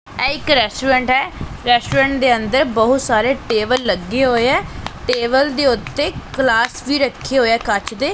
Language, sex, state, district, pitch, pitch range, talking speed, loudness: Punjabi, female, Punjab, Pathankot, 255 Hz, 235-270 Hz, 160 wpm, -16 LUFS